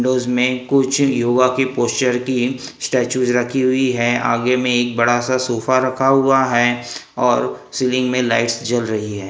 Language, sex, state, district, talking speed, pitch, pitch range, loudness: Hindi, male, Maharashtra, Gondia, 175 wpm, 125 Hz, 120-130 Hz, -17 LUFS